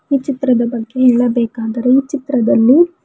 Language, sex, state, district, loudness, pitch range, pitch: Kannada, female, Karnataka, Bidar, -14 LUFS, 240-275 Hz, 250 Hz